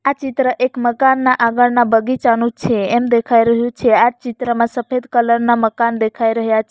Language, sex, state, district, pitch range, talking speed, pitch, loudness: Gujarati, female, Gujarat, Valsad, 230-250 Hz, 180 wpm, 240 Hz, -15 LUFS